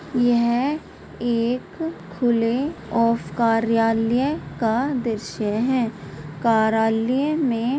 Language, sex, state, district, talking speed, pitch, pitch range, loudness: Hindi, female, Bihar, Purnia, 70 wpm, 235 Hz, 225-255 Hz, -22 LUFS